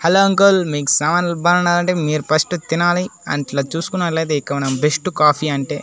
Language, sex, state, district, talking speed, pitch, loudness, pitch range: Telugu, male, Andhra Pradesh, Annamaya, 145 wpm, 160 Hz, -17 LUFS, 150-175 Hz